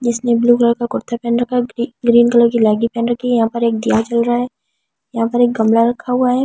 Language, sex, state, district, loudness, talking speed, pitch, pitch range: Hindi, female, Delhi, New Delhi, -15 LUFS, 270 wpm, 235 Hz, 235-245 Hz